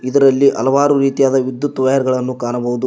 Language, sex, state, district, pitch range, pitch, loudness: Kannada, male, Karnataka, Koppal, 130-140 Hz, 130 Hz, -15 LUFS